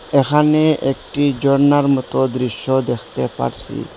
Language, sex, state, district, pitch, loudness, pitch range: Bengali, male, Assam, Hailakandi, 140 Hz, -17 LUFS, 130-145 Hz